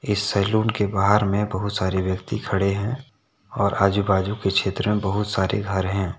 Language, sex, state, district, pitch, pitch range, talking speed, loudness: Hindi, male, Jharkhand, Deoghar, 100 Hz, 95-105 Hz, 195 wpm, -22 LUFS